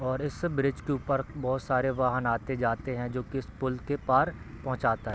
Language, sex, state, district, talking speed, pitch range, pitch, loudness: Hindi, male, Bihar, East Champaran, 220 wpm, 125-135 Hz, 130 Hz, -30 LUFS